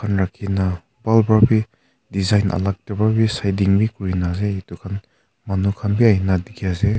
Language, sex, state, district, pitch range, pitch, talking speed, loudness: Nagamese, male, Nagaland, Kohima, 95-110 Hz, 100 Hz, 135 wpm, -19 LUFS